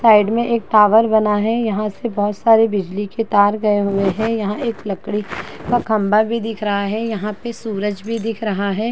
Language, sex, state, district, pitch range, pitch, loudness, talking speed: Hindi, female, Uttar Pradesh, Muzaffarnagar, 205-225 Hz, 215 Hz, -18 LUFS, 220 wpm